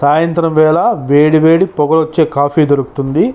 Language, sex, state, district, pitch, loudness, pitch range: Telugu, male, Andhra Pradesh, Chittoor, 155 Hz, -11 LUFS, 145-160 Hz